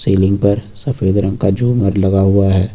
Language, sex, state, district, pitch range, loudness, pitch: Hindi, male, Uttar Pradesh, Lucknow, 95-100 Hz, -14 LUFS, 100 Hz